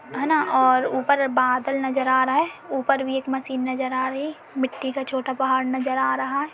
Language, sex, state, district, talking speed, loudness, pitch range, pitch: Hindi, female, Uttar Pradesh, Budaun, 230 wpm, -22 LUFS, 260-275 Hz, 265 Hz